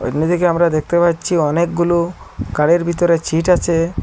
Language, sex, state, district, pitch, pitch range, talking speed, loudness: Bengali, male, Assam, Hailakandi, 170 Hz, 165-175 Hz, 150 wpm, -16 LUFS